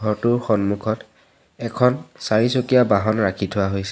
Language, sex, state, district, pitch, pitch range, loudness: Assamese, male, Assam, Sonitpur, 110 Hz, 100-120 Hz, -20 LUFS